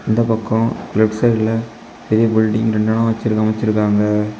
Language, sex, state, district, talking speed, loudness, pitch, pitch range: Tamil, male, Tamil Nadu, Kanyakumari, 125 wpm, -17 LUFS, 110 Hz, 110-115 Hz